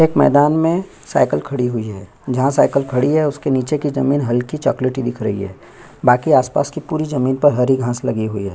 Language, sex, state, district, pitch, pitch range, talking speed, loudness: Hindi, male, Chhattisgarh, Sukma, 130 Hz, 120-145 Hz, 220 wpm, -17 LUFS